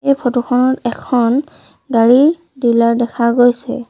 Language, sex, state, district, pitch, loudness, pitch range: Assamese, female, Assam, Sonitpur, 245 Hz, -14 LUFS, 235-265 Hz